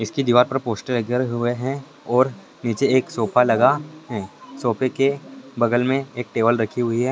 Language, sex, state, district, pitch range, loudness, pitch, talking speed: Hindi, male, Maharashtra, Sindhudurg, 120-135 Hz, -21 LUFS, 125 Hz, 185 wpm